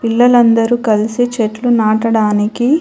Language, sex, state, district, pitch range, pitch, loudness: Telugu, female, Telangana, Hyderabad, 215-240 Hz, 230 Hz, -13 LUFS